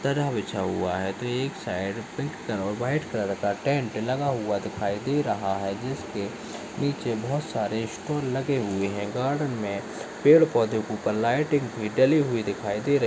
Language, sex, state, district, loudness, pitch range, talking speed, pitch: Hindi, male, Chhattisgarh, Balrampur, -27 LUFS, 100-140 Hz, 190 wpm, 115 Hz